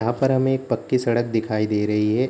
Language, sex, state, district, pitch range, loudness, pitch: Hindi, male, Bihar, Darbhanga, 110-130 Hz, -21 LUFS, 115 Hz